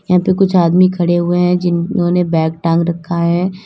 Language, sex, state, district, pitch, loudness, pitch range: Hindi, female, Uttar Pradesh, Lalitpur, 175 Hz, -14 LUFS, 170-185 Hz